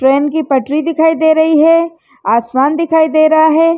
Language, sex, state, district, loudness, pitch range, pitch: Hindi, female, Chhattisgarh, Rajnandgaon, -11 LUFS, 285-325 Hz, 315 Hz